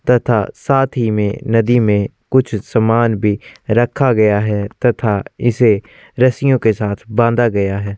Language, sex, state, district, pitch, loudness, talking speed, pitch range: Hindi, male, Chhattisgarh, Korba, 115 Hz, -15 LUFS, 160 wpm, 105-120 Hz